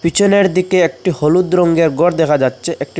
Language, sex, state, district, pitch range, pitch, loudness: Bengali, male, Assam, Hailakandi, 160-180 Hz, 170 Hz, -14 LUFS